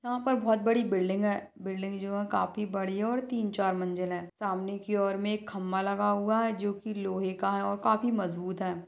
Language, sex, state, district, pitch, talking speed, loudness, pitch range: Hindi, female, Chhattisgarh, Balrampur, 200 Hz, 230 wpm, -30 LUFS, 190-215 Hz